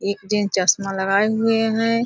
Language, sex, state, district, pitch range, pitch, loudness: Hindi, female, Bihar, Purnia, 195-225 Hz, 205 Hz, -19 LUFS